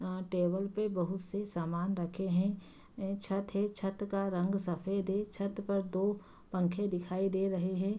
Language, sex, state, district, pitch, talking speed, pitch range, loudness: Hindi, female, Bihar, Saharsa, 195 Hz, 180 wpm, 185-200 Hz, -35 LUFS